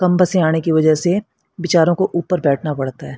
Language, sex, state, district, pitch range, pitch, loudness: Hindi, female, Haryana, Rohtak, 155-180 Hz, 170 Hz, -16 LUFS